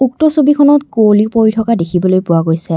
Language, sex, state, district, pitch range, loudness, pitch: Assamese, female, Assam, Kamrup Metropolitan, 180-285 Hz, -11 LUFS, 220 Hz